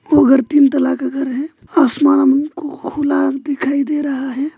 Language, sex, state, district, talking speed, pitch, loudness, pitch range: Hindi, male, West Bengal, Alipurduar, 185 wpm, 285 Hz, -15 LUFS, 275-300 Hz